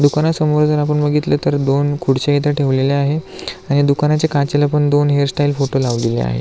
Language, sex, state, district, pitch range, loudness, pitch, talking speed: Marathi, male, Maharashtra, Aurangabad, 140-150 Hz, -16 LUFS, 145 Hz, 185 wpm